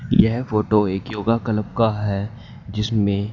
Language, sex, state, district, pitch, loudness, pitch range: Hindi, male, Haryana, Jhajjar, 105 Hz, -21 LUFS, 105-110 Hz